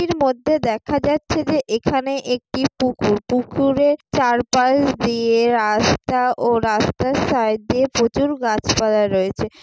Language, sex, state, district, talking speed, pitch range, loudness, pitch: Bengali, female, West Bengal, Jalpaiguri, 120 wpm, 230-275 Hz, -18 LUFS, 250 Hz